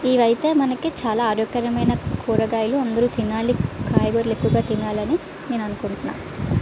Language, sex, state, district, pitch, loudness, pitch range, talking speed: Telugu, female, Andhra Pradesh, Visakhapatnam, 230 Hz, -22 LUFS, 220-255 Hz, 135 wpm